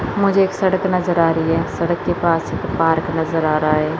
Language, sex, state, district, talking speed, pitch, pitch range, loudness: Hindi, female, Chandigarh, Chandigarh, 240 wpm, 165 Hz, 160-180 Hz, -18 LUFS